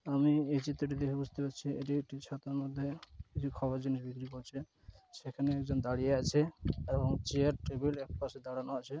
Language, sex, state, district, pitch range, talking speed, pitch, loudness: Bengali, male, West Bengal, Dakshin Dinajpur, 135-140 Hz, 165 wpm, 140 Hz, -36 LUFS